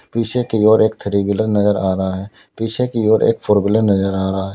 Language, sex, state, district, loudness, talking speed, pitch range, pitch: Hindi, male, Uttar Pradesh, Lalitpur, -16 LUFS, 265 wpm, 95-110 Hz, 105 Hz